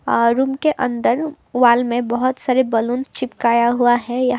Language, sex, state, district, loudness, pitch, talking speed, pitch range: Hindi, female, Assam, Kamrup Metropolitan, -18 LUFS, 245 Hz, 175 wpm, 240-255 Hz